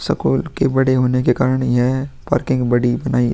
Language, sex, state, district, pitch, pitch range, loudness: Hindi, male, Bihar, Vaishali, 125 Hz, 120-130 Hz, -17 LUFS